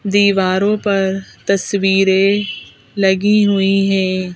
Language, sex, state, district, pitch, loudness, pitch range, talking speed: Hindi, female, Madhya Pradesh, Bhopal, 195 Hz, -15 LUFS, 190-200 Hz, 85 wpm